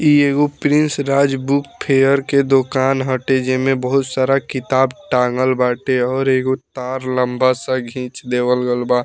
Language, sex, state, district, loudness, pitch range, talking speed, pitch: Bhojpuri, male, Bihar, Muzaffarpur, -17 LUFS, 125-135 Hz, 160 wpm, 130 Hz